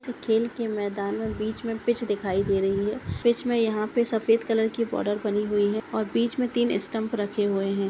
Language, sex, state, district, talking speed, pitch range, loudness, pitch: Hindi, female, Bihar, Madhepura, 230 wpm, 205-230 Hz, -26 LUFS, 220 Hz